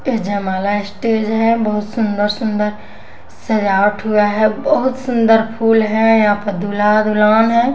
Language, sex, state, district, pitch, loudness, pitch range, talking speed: Hindi, female, Bihar, West Champaran, 215 Hz, -15 LUFS, 205-225 Hz, 145 wpm